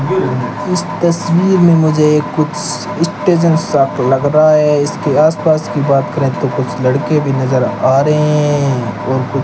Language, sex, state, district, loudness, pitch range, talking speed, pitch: Hindi, male, Rajasthan, Bikaner, -13 LUFS, 130-155 Hz, 165 wpm, 150 Hz